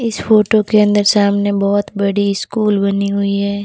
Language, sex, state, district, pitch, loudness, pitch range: Hindi, female, Rajasthan, Barmer, 200 Hz, -14 LUFS, 200-210 Hz